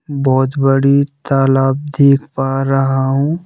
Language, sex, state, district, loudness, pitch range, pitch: Hindi, male, Madhya Pradesh, Bhopal, -14 LUFS, 135-140 Hz, 135 Hz